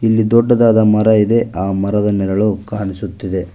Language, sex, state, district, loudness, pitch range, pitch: Kannada, male, Karnataka, Koppal, -14 LUFS, 100-110 Hz, 105 Hz